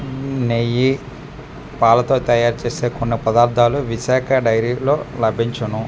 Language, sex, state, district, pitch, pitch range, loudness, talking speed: Telugu, male, Andhra Pradesh, Manyam, 120 Hz, 115-135 Hz, -17 LUFS, 120 wpm